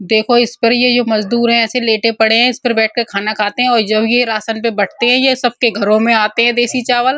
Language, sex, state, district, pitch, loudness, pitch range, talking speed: Hindi, female, Uttar Pradesh, Muzaffarnagar, 235 Hz, -13 LUFS, 220-245 Hz, 285 wpm